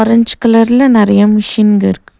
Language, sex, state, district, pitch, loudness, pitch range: Tamil, female, Tamil Nadu, Nilgiris, 220 Hz, -9 LUFS, 205-230 Hz